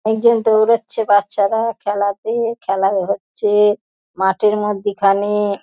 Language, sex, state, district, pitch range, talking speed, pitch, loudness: Bengali, female, West Bengal, Dakshin Dinajpur, 200-220 Hz, 105 wpm, 210 Hz, -17 LUFS